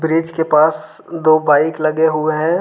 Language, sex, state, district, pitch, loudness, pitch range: Hindi, male, Jharkhand, Deoghar, 155 Hz, -15 LUFS, 155-160 Hz